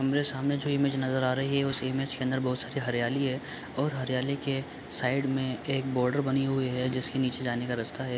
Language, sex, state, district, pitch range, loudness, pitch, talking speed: Hindi, male, Bihar, Supaul, 130-140 Hz, -29 LUFS, 130 Hz, 235 wpm